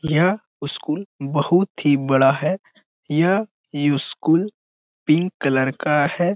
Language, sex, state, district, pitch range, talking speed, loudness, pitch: Hindi, male, Bihar, Jamui, 145-190 Hz, 115 wpm, -19 LUFS, 155 Hz